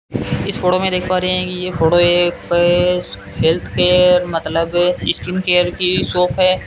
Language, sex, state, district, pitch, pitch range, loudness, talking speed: Hindi, male, Rajasthan, Bikaner, 180 Hz, 175-180 Hz, -15 LUFS, 155 wpm